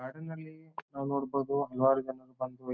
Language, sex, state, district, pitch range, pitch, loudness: Kannada, male, Karnataka, Bijapur, 130-140 Hz, 135 Hz, -33 LUFS